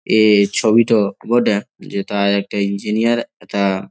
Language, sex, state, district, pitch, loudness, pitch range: Bengali, male, West Bengal, Jalpaiguri, 105 Hz, -17 LUFS, 100-110 Hz